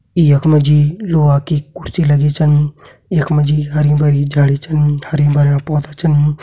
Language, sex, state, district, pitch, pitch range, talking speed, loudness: Hindi, male, Uttarakhand, Tehri Garhwal, 150 Hz, 145-155 Hz, 180 wpm, -13 LUFS